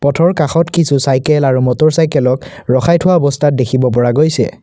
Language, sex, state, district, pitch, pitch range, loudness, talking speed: Assamese, male, Assam, Kamrup Metropolitan, 145 Hz, 130-160 Hz, -12 LUFS, 145 wpm